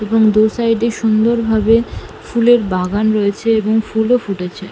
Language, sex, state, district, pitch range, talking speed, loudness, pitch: Bengali, female, West Bengal, North 24 Parganas, 210-230 Hz, 165 wpm, -15 LUFS, 220 Hz